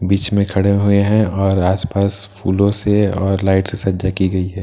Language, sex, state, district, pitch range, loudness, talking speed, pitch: Hindi, male, Bihar, Katihar, 95-100 Hz, -16 LUFS, 220 wpm, 100 Hz